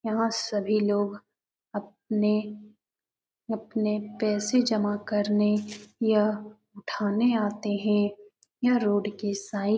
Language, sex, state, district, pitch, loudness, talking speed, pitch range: Hindi, male, Bihar, Jamui, 210 Hz, -27 LUFS, 105 wpm, 205-215 Hz